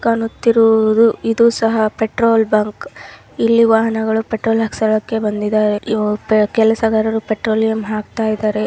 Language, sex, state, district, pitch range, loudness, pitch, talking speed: Kannada, female, Karnataka, Raichur, 215-225 Hz, -15 LUFS, 220 Hz, 95 wpm